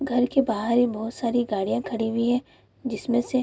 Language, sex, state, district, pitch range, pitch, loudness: Hindi, female, Bihar, Bhagalpur, 225-245 Hz, 240 Hz, -25 LUFS